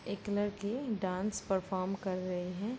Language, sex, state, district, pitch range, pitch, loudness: Hindi, female, Uttar Pradesh, Jalaun, 185-205 Hz, 195 Hz, -36 LUFS